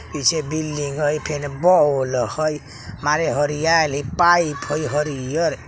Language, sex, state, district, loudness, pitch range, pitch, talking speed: Bajjika, male, Bihar, Vaishali, -20 LUFS, 140-155 Hz, 150 Hz, 125 wpm